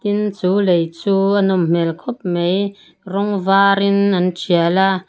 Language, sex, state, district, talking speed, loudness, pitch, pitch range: Mizo, female, Mizoram, Aizawl, 165 wpm, -17 LUFS, 195 Hz, 175-200 Hz